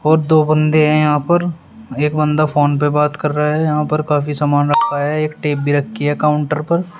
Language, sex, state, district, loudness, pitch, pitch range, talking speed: Hindi, male, Uttar Pradesh, Shamli, -15 LUFS, 150 Hz, 150-155 Hz, 225 wpm